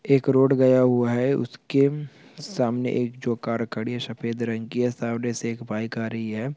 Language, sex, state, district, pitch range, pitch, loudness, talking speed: Hindi, male, Chhattisgarh, Bastar, 115-130 Hz, 120 Hz, -24 LUFS, 210 wpm